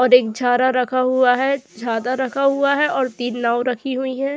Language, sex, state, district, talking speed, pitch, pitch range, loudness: Hindi, female, Uttar Pradesh, Jyotiba Phule Nagar, 220 wpm, 255 Hz, 245-265 Hz, -19 LUFS